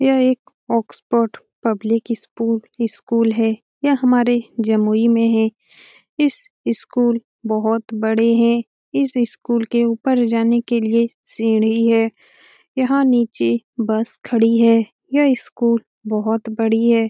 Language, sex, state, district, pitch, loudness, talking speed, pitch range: Hindi, female, Bihar, Jamui, 230 Hz, -18 LUFS, 125 wpm, 225-240 Hz